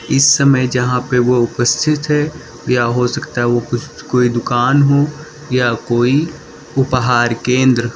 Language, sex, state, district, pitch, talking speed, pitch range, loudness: Hindi, male, Uttar Pradesh, Lucknow, 125 Hz, 150 wpm, 120-140 Hz, -15 LUFS